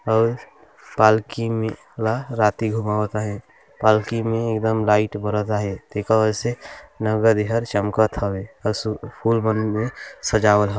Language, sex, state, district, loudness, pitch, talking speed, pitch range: Hindi, male, Chhattisgarh, Balrampur, -21 LUFS, 110 Hz, 130 wpm, 105-115 Hz